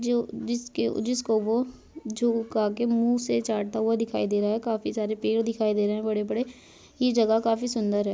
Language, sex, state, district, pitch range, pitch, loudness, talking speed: Hindi, female, Bihar, Samastipur, 215-240 Hz, 225 Hz, -26 LUFS, 190 wpm